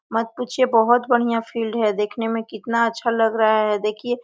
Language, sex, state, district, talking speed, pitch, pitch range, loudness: Hindi, female, Chhattisgarh, Korba, 185 wpm, 225 Hz, 220-235 Hz, -20 LUFS